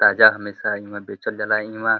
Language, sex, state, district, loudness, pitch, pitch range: Bhojpuri, male, Uttar Pradesh, Deoria, -20 LUFS, 105 Hz, 105-110 Hz